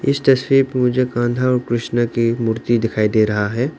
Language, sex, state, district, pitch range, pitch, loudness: Hindi, male, Arunachal Pradesh, Lower Dibang Valley, 115-130 Hz, 120 Hz, -17 LUFS